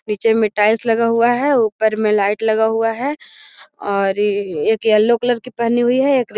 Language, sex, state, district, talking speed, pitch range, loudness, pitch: Magahi, female, Bihar, Gaya, 205 wpm, 215-235 Hz, -16 LUFS, 225 Hz